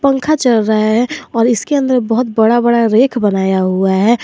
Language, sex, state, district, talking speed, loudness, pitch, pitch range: Hindi, male, Jharkhand, Garhwa, 200 wpm, -13 LUFS, 235 Hz, 215-250 Hz